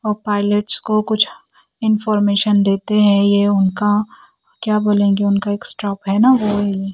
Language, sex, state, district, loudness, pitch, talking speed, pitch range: Hindi, female, Chhattisgarh, Raipur, -16 LUFS, 205 Hz, 175 wpm, 200-215 Hz